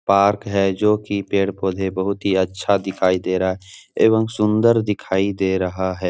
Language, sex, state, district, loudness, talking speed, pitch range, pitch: Hindi, male, Bihar, Supaul, -19 LUFS, 165 wpm, 95-100 Hz, 95 Hz